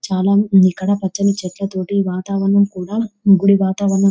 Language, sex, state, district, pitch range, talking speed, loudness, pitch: Telugu, female, Telangana, Nalgonda, 190-200 Hz, 145 wpm, -16 LUFS, 195 Hz